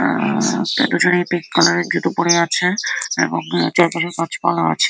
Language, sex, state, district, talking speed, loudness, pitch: Bengali, female, West Bengal, Jhargram, 145 wpm, -17 LUFS, 170 Hz